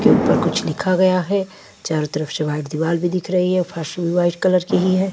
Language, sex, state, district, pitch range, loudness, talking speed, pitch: Hindi, female, Odisha, Nuapada, 165-185 Hz, -19 LUFS, 245 wpm, 180 Hz